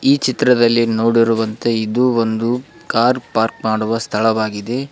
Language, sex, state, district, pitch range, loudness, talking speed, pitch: Kannada, male, Karnataka, Koppal, 110-125 Hz, -16 LUFS, 110 wpm, 115 Hz